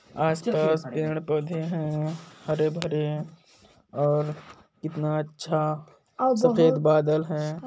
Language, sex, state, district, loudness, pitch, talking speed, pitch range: Hindi, male, Chhattisgarh, Balrampur, -26 LUFS, 155 Hz, 95 wpm, 150-160 Hz